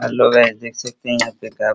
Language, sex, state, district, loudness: Hindi, male, Bihar, Araria, -17 LUFS